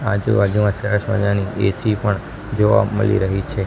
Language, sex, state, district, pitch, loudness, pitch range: Gujarati, male, Gujarat, Gandhinagar, 105 Hz, -18 LUFS, 100-105 Hz